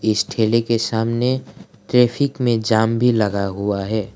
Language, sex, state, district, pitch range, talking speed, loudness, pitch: Hindi, male, Assam, Kamrup Metropolitan, 110-120 Hz, 160 wpm, -19 LUFS, 115 Hz